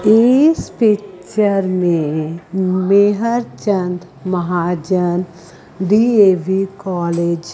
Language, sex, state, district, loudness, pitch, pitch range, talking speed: Hindi, female, Chandigarh, Chandigarh, -16 LUFS, 185 Hz, 175-205 Hz, 70 wpm